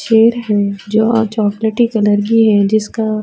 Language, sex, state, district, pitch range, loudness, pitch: Urdu, female, Uttar Pradesh, Budaun, 210-225 Hz, -13 LUFS, 220 Hz